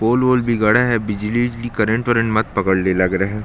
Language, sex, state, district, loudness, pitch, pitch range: Hindi, male, Chhattisgarh, Jashpur, -17 LUFS, 110 Hz, 105-120 Hz